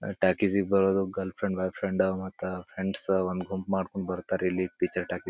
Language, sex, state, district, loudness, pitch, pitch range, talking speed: Kannada, male, Karnataka, Bijapur, -29 LUFS, 95 Hz, 90-95 Hz, 170 wpm